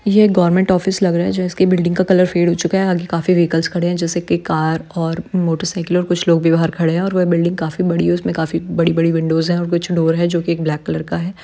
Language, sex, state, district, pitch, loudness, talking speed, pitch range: Hindi, female, Bihar, Supaul, 170 Hz, -16 LUFS, 275 wpm, 165-180 Hz